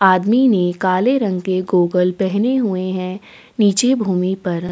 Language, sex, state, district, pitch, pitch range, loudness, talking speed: Hindi, female, Chhattisgarh, Sukma, 190 Hz, 185-230 Hz, -17 LUFS, 165 wpm